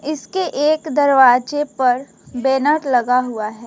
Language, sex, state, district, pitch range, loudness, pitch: Hindi, female, West Bengal, Alipurduar, 245-295 Hz, -17 LUFS, 265 Hz